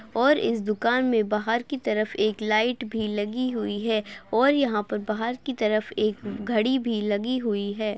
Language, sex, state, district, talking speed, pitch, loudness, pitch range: Hindi, female, Bihar, Begusarai, 190 wpm, 220 Hz, -25 LUFS, 215-240 Hz